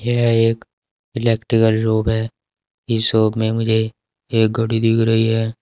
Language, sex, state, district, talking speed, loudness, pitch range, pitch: Hindi, male, Uttar Pradesh, Saharanpur, 150 wpm, -17 LUFS, 110-115 Hz, 115 Hz